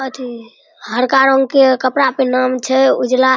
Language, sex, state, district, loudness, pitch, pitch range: Maithili, female, Bihar, Araria, -13 LUFS, 260 Hz, 255-265 Hz